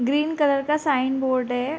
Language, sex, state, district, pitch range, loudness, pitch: Hindi, female, Bihar, Gopalganj, 260-295 Hz, -22 LUFS, 275 Hz